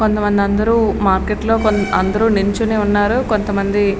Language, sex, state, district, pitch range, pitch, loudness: Telugu, female, Andhra Pradesh, Srikakulam, 200-220 Hz, 205 Hz, -16 LUFS